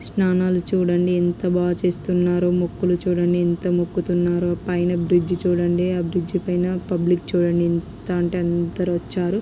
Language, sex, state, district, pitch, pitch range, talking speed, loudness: Telugu, female, Andhra Pradesh, Krishna, 180 Hz, 175-180 Hz, 135 wpm, -21 LUFS